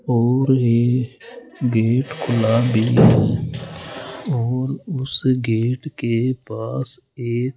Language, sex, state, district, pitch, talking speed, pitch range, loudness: Hindi, male, Rajasthan, Jaipur, 125 Hz, 95 wpm, 120-130 Hz, -19 LUFS